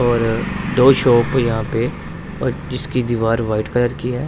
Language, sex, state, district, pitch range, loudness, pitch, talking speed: Hindi, male, Punjab, Pathankot, 115-125 Hz, -18 LUFS, 120 Hz, 170 wpm